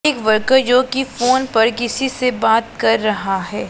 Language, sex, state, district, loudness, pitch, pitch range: Hindi, female, Punjab, Pathankot, -16 LUFS, 240 Hz, 225-260 Hz